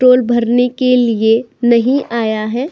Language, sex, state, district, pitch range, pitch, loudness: Hindi, female, Uttar Pradesh, Budaun, 230-255 Hz, 240 Hz, -13 LUFS